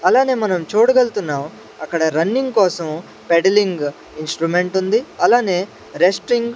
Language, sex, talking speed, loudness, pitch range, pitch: Telugu, male, 110 wpm, -17 LUFS, 165-240 Hz, 190 Hz